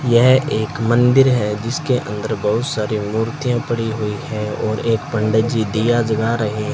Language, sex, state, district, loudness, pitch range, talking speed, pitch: Hindi, male, Rajasthan, Bikaner, -18 LUFS, 110-120 Hz, 180 wpm, 115 Hz